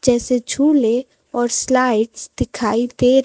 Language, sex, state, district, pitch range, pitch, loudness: Hindi, female, Chhattisgarh, Raipur, 230-255 Hz, 245 Hz, -18 LUFS